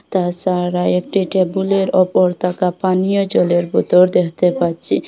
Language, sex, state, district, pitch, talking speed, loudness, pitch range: Bengali, female, Assam, Hailakandi, 180 Hz, 120 wpm, -16 LUFS, 175-190 Hz